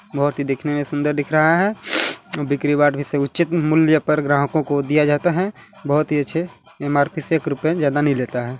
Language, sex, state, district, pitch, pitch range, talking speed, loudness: Hindi, male, Chhattisgarh, Balrampur, 145 Hz, 145-160 Hz, 215 wpm, -19 LUFS